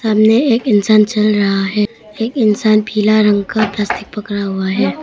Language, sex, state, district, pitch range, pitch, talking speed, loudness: Hindi, female, Arunachal Pradesh, Papum Pare, 205-220 Hz, 215 Hz, 165 wpm, -14 LUFS